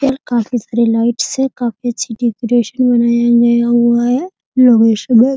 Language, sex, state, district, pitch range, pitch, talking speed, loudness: Hindi, female, Bihar, Muzaffarpur, 235-250 Hz, 240 Hz, 145 wpm, -13 LUFS